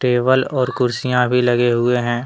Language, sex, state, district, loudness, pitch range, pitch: Hindi, male, Jharkhand, Deoghar, -17 LUFS, 120-130 Hz, 125 Hz